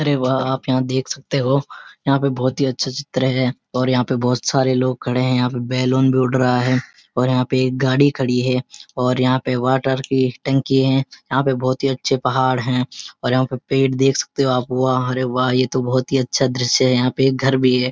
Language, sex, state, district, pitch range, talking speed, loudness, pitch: Hindi, male, Uttarakhand, Uttarkashi, 125-135 Hz, 250 wpm, -18 LUFS, 130 Hz